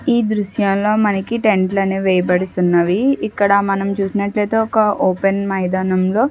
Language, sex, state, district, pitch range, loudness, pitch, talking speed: Telugu, female, Andhra Pradesh, Chittoor, 190-210 Hz, -16 LUFS, 200 Hz, 125 wpm